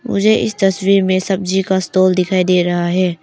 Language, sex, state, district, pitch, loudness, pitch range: Hindi, female, Arunachal Pradesh, Papum Pare, 185 Hz, -15 LUFS, 185-195 Hz